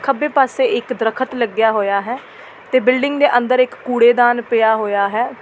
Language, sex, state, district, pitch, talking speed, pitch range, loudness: Punjabi, female, Delhi, New Delhi, 245 Hz, 175 wpm, 225-260 Hz, -16 LUFS